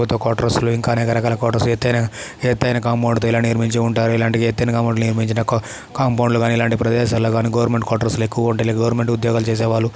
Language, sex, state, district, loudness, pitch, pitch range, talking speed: Telugu, male, Andhra Pradesh, Chittoor, -18 LUFS, 115 Hz, 115-120 Hz, 170 wpm